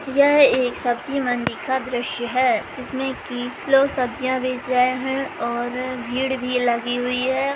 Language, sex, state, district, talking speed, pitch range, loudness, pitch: Hindi, female, Bihar, Begusarai, 160 wpm, 245-265 Hz, -21 LUFS, 255 Hz